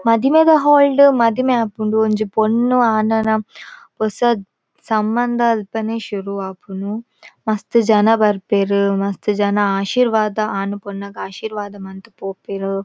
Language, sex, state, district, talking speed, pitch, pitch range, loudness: Tulu, female, Karnataka, Dakshina Kannada, 110 wpm, 215 Hz, 200-230 Hz, -17 LUFS